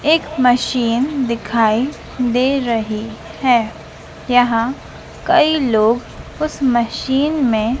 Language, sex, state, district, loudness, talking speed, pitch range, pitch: Hindi, female, Madhya Pradesh, Dhar, -17 LUFS, 90 wpm, 230-265 Hz, 245 Hz